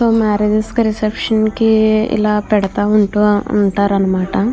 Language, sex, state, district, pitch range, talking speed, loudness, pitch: Telugu, female, Andhra Pradesh, Krishna, 205-220 Hz, 120 wpm, -14 LUFS, 210 Hz